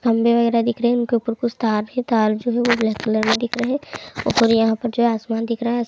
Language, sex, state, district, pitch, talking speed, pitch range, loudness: Hindi, female, Uttar Pradesh, Muzaffarnagar, 235 Hz, 295 wpm, 225-240 Hz, -19 LUFS